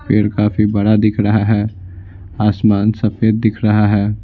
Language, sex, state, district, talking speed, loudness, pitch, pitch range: Hindi, male, Bihar, Patna, 155 wpm, -15 LUFS, 105 Hz, 105-110 Hz